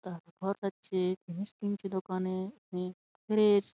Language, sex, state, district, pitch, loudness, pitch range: Bengali, male, West Bengal, Malda, 190 Hz, -34 LUFS, 185-205 Hz